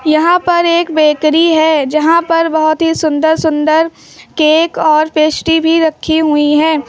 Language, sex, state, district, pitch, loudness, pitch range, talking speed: Hindi, female, Uttar Pradesh, Lucknow, 315 Hz, -11 LUFS, 310-330 Hz, 155 wpm